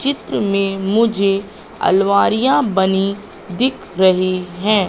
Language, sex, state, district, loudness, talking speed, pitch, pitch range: Hindi, female, Madhya Pradesh, Katni, -16 LUFS, 100 wpm, 200 Hz, 190-215 Hz